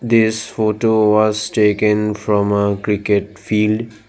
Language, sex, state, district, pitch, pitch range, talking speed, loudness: English, male, Assam, Sonitpur, 105 Hz, 105-110 Hz, 115 wpm, -16 LUFS